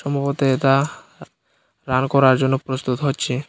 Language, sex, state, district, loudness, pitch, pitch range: Bengali, male, Tripura, Unakoti, -19 LUFS, 135 Hz, 130-140 Hz